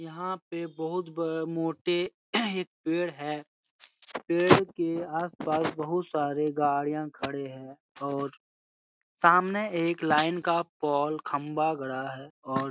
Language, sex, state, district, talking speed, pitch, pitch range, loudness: Hindi, male, Bihar, Supaul, 125 wpm, 155 Hz, 145-170 Hz, -29 LUFS